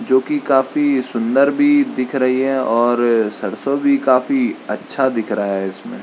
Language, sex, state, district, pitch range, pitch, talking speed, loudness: Hindi, male, Uttarakhand, Tehri Garhwal, 120-145 Hz, 130 Hz, 170 wpm, -17 LUFS